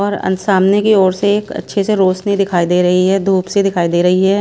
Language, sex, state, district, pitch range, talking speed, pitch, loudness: Hindi, female, Himachal Pradesh, Shimla, 185-200 Hz, 260 wpm, 195 Hz, -14 LUFS